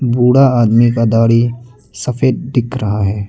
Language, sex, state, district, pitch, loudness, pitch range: Hindi, male, Arunachal Pradesh, Lower Dibang Valley, 120 Hz, -13 LUFS, 115-125 Hz